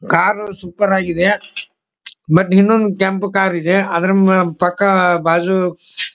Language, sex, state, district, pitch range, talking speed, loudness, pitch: Kannada, male, Karnataka, Dharwad, 175-195 Hz, 105 wpm, -15 LUFS, 190 Hz